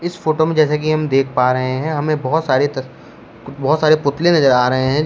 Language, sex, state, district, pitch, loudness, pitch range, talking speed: Hindi, male, Uttar Pradesh, Shamli, 150 Hz, -16 LUFS, 130-155 Hz, 250 wpm